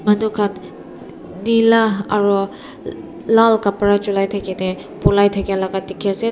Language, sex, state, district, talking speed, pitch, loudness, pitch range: Nagamese, female, Nagaland, Kohima, 140 wpm, 200 Hz, -17 LUFS, 195-215 Hz